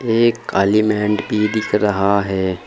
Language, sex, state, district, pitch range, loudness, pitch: Hindi, male, Uttar Pradesh, Saharanpur, 100-110 Hz, -17 LUFS, 105 Hz